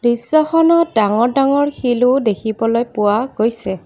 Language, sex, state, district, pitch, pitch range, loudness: Assamese, female, Assam, Kamrup Metropolitan, 240 Hz, 220-275 Hz, -15 LUFS